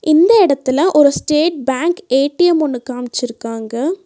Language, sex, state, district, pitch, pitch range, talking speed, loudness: Tamil, female, Tamil Nadu, Nilgiris, 290 Hz, 255-335 Hz, 120 wpm, -15 LUFS